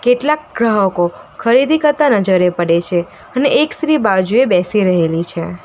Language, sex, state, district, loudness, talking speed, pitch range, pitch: Gujarati, female, Gujarat, Valsad, -14 LUFS, 150 wpm, 180-275 Hz, 210 Hz